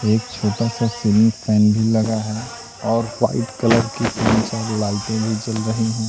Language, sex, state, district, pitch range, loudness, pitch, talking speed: Hindi, male, Madhya Pradesh, Katni, 110-115 Hz, -19 LUFS, 110 Hz, 175 wpm